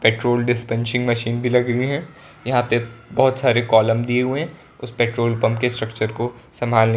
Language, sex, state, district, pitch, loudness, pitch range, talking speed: Hindi, male, Gujarat, Valsad, 120 Hz, -20 LUFS, 115-125 Hz, 205 wpm